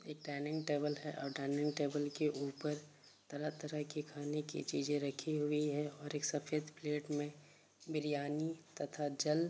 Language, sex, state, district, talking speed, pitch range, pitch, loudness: Hindi, male, Uttar Pradesh, Varanasi, 170 wpm, 145-150 Hz, 150 Hz, -40 LUFS